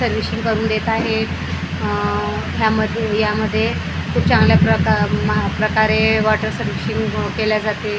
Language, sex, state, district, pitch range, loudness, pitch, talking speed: Marathi, female, Maharashtra, Gondia, 215-220 Hz, -18 LUFS, 215 Hz, 145 wpm